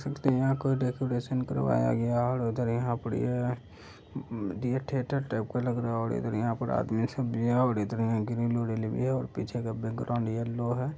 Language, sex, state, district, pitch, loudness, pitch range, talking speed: Hindi, male, Bihar, Araria, 120 Hz, -30 LUFS, 115-125 Hz, 230 wpm